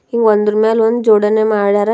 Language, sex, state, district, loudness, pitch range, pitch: Kannada, female, Karnataka, Bidar, -13 LUFS, 210-225 Hz, 220 Hz